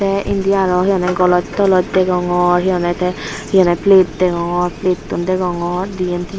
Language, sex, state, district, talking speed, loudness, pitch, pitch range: Chakma, female, Tripura, Unakoti, 170 wpm, -15 LUFS, 180 Hz, 180-190 Hz